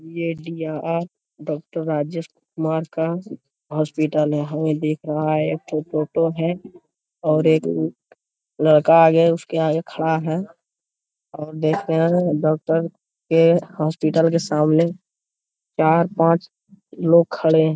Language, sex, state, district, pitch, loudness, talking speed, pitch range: Hindi, male, Bihar, Jamui, 160 Hz, -20 LUFS, 115 wpm, 155-165 Hz